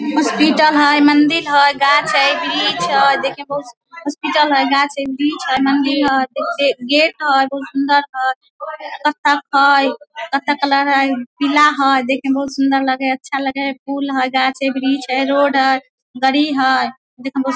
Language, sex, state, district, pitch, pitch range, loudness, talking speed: Maithili, female, Bihar, Samastipur, 275 Hz, 265-290 Hz, -15 LUFS, 190 wpm